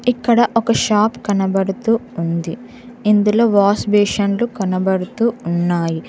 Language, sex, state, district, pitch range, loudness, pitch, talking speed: Telugu, female, Telangana, Mahabubabad, 190-235 Hz, -17 LUFS, 210 Hz, 110 wpm